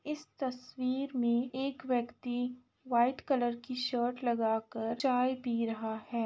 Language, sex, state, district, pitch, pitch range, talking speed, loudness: Hindi, female, Uttar Pradesh, Jalaun, 245 Hz, 235-260 Hz, 145 wpm, -34 LUFS